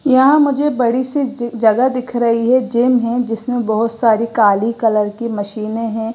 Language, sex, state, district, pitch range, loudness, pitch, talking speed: Hindi, female, Gujarat, Gandhinagar, 225-255 Hz, -15 LUFS, 235 Hz, 175 wpm